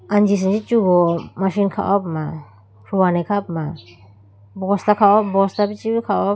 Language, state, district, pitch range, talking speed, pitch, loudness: Idu Mishmi, Arunachal Pradesh, Lower Dibang Valley, 160-205 Hz, 140 wpm, 195 Hz, -18 LUFS